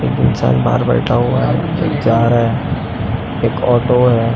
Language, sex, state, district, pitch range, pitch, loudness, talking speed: Hindi, male, Maharashtra, Mumbai Suburban, 115-125 Hz, 115 Hz, -15 LUFS, 180 wpm